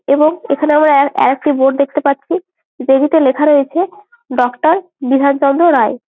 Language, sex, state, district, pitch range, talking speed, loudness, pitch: Bengali, female, West Bengal, Jalpaiguri, 275-330 Hz, 150 wpm, -13 LUFS, 290 Hz